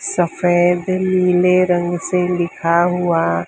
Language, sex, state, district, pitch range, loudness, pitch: Hindi, female, Maharashtra, Mumbai Suburban, 175-180 Hz, -16 LUFS, 175 Hz